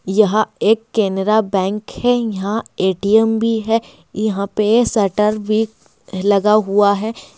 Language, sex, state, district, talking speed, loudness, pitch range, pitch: Hindi, female, Bihar, Kishanganj, 130 wpm, -17 LUFS, 200-220 Hz, 215 Hz